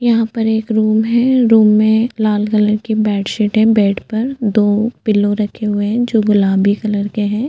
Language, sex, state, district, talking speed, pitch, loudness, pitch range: Hindi, female, Chhattisgarh, Jashpur, 190 wpm, 215 Hz, -14 LUFS, 210-225 Hz